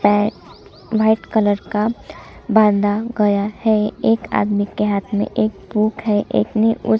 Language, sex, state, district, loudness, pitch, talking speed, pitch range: Hindi, female, Chhattisgarh, Sukma, -18 LUFS, 210 Hz, 155 wpm, 205-220 Hz